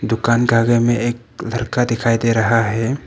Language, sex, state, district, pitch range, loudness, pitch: Hindi, male, Arunachal Pradesh, Papum Pare, 115-120 Hz, -17 LUFS, 115 Hz